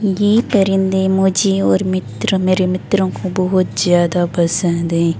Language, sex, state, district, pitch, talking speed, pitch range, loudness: Hindi, female, Delhi, New Delhi, 185 Hz, 140 wpm, 170-190 Hz, -15 LUFS